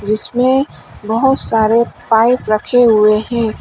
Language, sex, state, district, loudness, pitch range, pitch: Hindi, female, Uttar Pradesh, Lalitpur, -13 LUFS, 215-245 Hz, 225 Hz